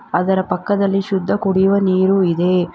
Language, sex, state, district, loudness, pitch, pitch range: Kannada, female, Karnataka, Bangalore, -16 LUFS, 190 Hz, 185-195 Hz